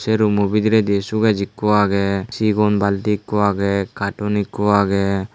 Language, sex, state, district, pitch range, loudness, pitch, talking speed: Chakma, male, Tripura, Unakoti, 100-105 Hz, -18 LUFS, 100 Hz, 145 wpm